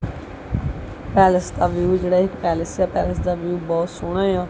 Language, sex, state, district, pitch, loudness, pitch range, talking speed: Punjabi, male, Punjab, Kapurthala, 180 Hz, -21 LUFS, 175-185 Hz, 185 wpm